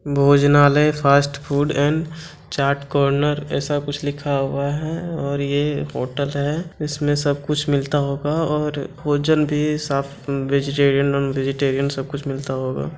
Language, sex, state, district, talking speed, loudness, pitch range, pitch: Angika, male, Bihar, Begusarai, 140 wpm, -20 LUFS, 140-150 Hz, 145 Hz